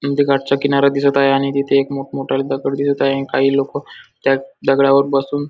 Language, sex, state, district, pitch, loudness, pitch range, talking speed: Marathi, male, Maharashtra, Nagpur, 140 Hz, -16 LUFS, 135-140 Hz, 205 wpm